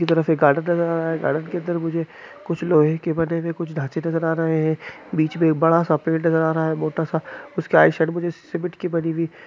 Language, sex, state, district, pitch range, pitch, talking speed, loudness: Hindi, male, Andhra Pradesh, Srikakulam, 160-170 Hz, 165 Hz, 210 wpm, -21 LUFS